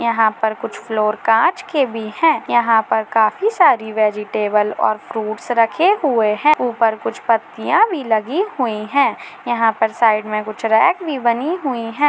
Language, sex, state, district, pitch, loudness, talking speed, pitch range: Hindi, female, Goa, North and South Goa, 230 Hz, -17 LUFS, 175 wpm, 220-290 Hz